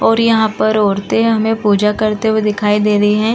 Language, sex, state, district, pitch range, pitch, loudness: Hindi, female, Uttar Pradesh, Muzaffarnagar, 210-220 Hz, 215 Hz, -14 LUFS